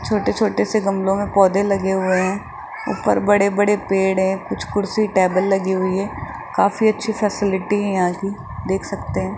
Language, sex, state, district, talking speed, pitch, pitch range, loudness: Hindi, male, Rajasthan, Jaipur, 180 wpm, 195 Hz, 190-205 Hz, -19 LUFS